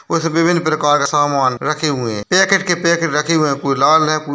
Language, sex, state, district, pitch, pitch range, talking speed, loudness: Hindi, male, Bihar, Jamui, 155 Hz, 145-165 Hz, 260 wpm, -15 LUFS